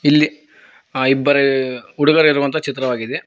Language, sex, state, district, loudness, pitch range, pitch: Kannada, male, Karnataka, Koppal, -16 LUFS, 130-150 Hz, 140 Hz